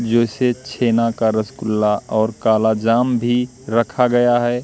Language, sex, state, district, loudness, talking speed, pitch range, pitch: Hindi, male, Madhya Pradesh, Katni, -18 LUFS, 140 wpm, 110-120 Hz, 115 Hz